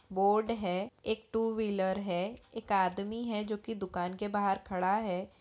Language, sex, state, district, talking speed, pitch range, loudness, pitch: Hindi, female, Bihar, Purnia, 175 wpm, 190-220 Hz, -33 LUFS, 200 Hz